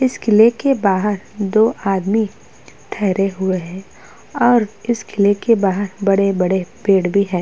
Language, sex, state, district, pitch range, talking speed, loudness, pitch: Hindi, female, Uttar Pradesh, Hamirpur, 190-220 Hz, 145 wpm, -17 LUFS, 200 Hz